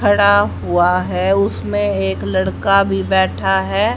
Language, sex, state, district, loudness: Hindi, male, Haryana, Charkhi Dadri, -16 LUFS